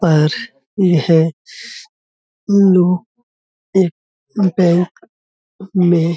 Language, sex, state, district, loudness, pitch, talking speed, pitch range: Hindi, male, Uttar Pradesh, Budaun, -15 LUFS, 180 Hz, 70 wpm, 165-195 Hz